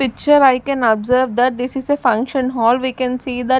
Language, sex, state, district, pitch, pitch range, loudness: English, female, Punjab, Fazilka, 255 Hz, 245-265 Hz, -16 LUFS